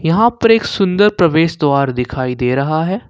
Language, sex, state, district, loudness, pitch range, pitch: Hindi, male, Jharkhand, Ranchi, -14 LUFS, 140-200 Hz, 165 Hz